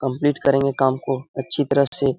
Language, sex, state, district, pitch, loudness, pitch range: Hindi, male, Bihar, Jahanabad, 140 Hz, -20 LUFS, 135-140 Hz